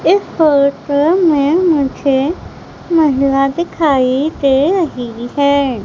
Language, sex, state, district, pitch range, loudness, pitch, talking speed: Hindi, female, Madhya Pradesh, Umaria, 275-325 Hz, -13 LUFS, 285 Hz, 90 wpm